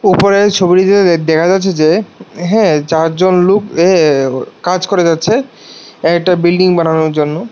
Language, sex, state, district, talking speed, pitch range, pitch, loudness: Bengali, male, Tripura, West Tripura, 130 wpm, 160-195 Hz, 180 Hz, -11 LUFS